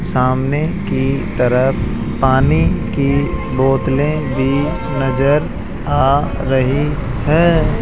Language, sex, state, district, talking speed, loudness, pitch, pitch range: Hindi, male, Rajasthan, Jaipur, 85 wpm, -16 LUFS, 135 Hz, 125-150 Hz